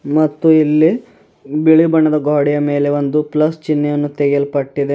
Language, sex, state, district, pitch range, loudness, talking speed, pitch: Kannada, male, Karnataka, Bidar, 145-155 Hz, -14 LUFS, 120 wpm, 150 Hz